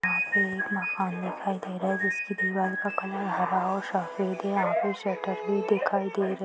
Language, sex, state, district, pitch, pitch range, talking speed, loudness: Hindi, female, Bihar, Saran, 195 Hz, 185-205 Hz, 195 wpm, -28 LUFS